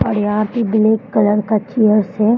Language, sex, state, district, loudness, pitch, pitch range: Hindi, female, Bihar, Bhagalpur, -15 LUFS, 215 Hz, 210-220 Hz